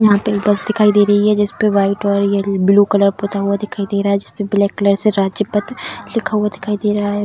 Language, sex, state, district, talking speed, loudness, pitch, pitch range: Hindi, female, Bihar, Darbhanga, 255 wpm, -16 LUFS, 205 Hz, 200-210 Hz